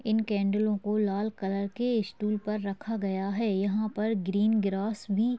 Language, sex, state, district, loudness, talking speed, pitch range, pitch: Hindi, female, Uttar Pradesh, Jyotiba Phule Nagar, -29 LUFS, 190 wpm, 200-215 Hz, 210 Hz